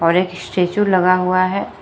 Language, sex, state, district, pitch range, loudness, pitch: Hindi, female, Jharkhand, Palamu, 180-185 Hz, -17 LUFS, 185 Hz